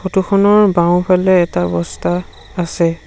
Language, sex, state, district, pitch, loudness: Assamese, male, Assam, Sonitpur, 175 Hz, -14 LUFS